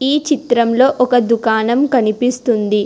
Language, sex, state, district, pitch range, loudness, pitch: Telugu, female, Telangana, Hyderabad, 230-260 Hz, -14 LUFS, 245 Hz